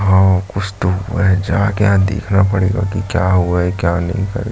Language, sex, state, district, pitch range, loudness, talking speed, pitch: Hindi, male, Chhattisgarh, Jashpur, 95-100 Hz, -16 LUFS, 225 wpm, 95 Hz